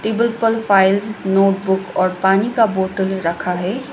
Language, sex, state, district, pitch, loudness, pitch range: Hindi, female, Sikkim, Gangtok, 195 Hz, -17 LUFS, 190-220 Hz